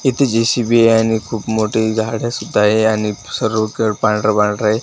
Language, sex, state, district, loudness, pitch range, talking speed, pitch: Marathi, male, Maharashtra, Washim, -16 LUFS, 105-115 Hz, 175 wpm, 110 Hz